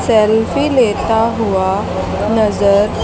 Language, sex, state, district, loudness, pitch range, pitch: Hindi, female, Haryana, Charkhi Dadri, -14 LUFS, 205-225 Hz, 215 Hz